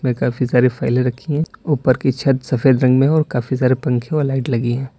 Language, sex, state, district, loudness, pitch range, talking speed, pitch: Hindi, male, Uttar Pradesh, Lalitpur, -17 LUFS, 125-135 Hz, 250 wpm, 130 Hz